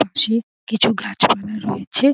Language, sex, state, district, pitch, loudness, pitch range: Bengali, female, West Bengal, Dakshin Dinajpur, 220 Hz, -19 LUFS, 215-230 Hz